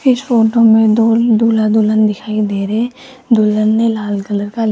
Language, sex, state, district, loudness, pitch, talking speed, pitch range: Hindi, female, Rajasthan, Jaipur, -13 LUFS, 220 Hz, 205 wpm, 215-230 Hz